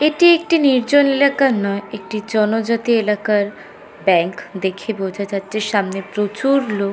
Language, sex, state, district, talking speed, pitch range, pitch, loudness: Bengali, female, West Bengal, North 24 Parganas, 130 wpm, 200-260 Hz, 215 Hz, -17 LUFS